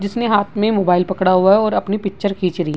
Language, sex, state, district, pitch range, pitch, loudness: Hindi, female, Bihar, Vaishali, 185-205 Hz, 200 Hz, -16 LUFS